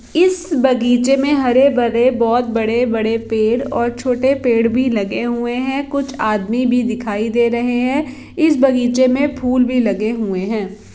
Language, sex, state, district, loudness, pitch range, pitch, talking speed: Hindi, female, Bihar, Jahanabad, -16 LUFS, 230-265 Hz, 245 Hz, 180 wpm